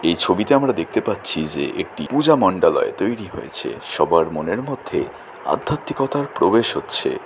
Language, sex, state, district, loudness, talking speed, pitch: Bengali, male, West Bengal, Jalpaiguri, -20 LUFS, 130 wpm, 390 Hz